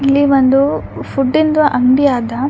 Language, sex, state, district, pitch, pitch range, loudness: Kannada, female, Karnataka, Raichur, 275 Hz, 260-285 Hz, -13 LUFS